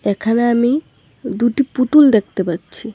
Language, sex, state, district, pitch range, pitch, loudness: Bengali, female, Tripura, Dhalai, 215-265 Hz, 235 Hz, -15 LUFS